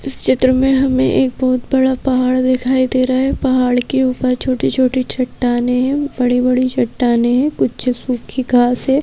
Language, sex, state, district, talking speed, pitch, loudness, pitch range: Hindi, female, Madhya Pradesh, Bhopal, 165 wpm, 255 Hz, -15 LUFS, 250-260 Hz